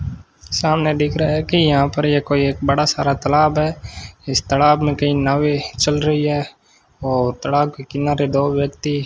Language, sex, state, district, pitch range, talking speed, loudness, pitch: Hindi, male, Rajasthan, Bikaner, 140-150 Hz, 190 wpm, -18 LUFS, 145 Hz